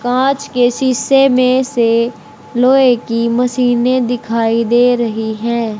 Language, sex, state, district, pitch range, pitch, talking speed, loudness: Hindi, male, Haryana, Rohtak, 230-255 Hz, 245 Hz, 125 wpm, -13 LUFS